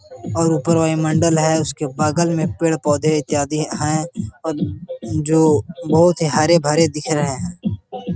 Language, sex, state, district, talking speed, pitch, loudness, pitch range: Hindi, male, Bihar, Gaya, 130 wpm, 160 Hz, -18 LUFS, 155-165 Hz